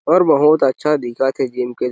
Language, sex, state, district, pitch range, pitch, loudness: Chhattisgarhi, male, Chhattisgarh, Sarguja, 125-150 Hz, 135 Hz, -16 LUFS